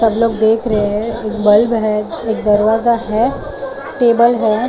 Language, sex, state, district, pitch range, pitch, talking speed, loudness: Hindi, female, Maharashtra, Mumbai Suburban, 215-235 Hz, 225 Hz, 180 wpm, -14 LUFS